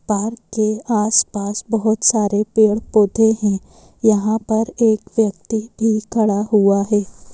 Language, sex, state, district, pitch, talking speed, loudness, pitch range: Hindi, female, Madhya Pradesh, Bhopal, 215 Hz, 125 wpm, -17 LUFS, 210-220 Hz